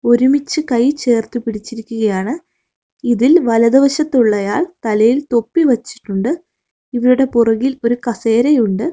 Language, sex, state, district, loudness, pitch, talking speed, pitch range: Malayalam, female, Kerala, Kozhikode, -15 LUFS, 240 Hz, 100 wpm, 230-275 Hz